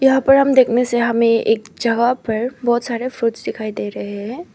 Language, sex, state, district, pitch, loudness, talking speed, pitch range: Hindi, female, Arunachal Pradesh, Papum Pare, 235 Hz, -17 LUFS, 210 wpm, 220-250 Hz